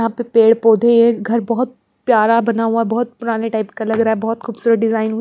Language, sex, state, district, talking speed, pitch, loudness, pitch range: Hindi, female, Punjab, Pathankot, 230 wpm, 230 Hz, -16 LUFS, 225-235 Hz